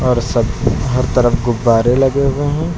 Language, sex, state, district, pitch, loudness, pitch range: Hindi, male, Uttar Pradesh, Lucknow, 125 Hz, -15 LUFS, 120-135 Hz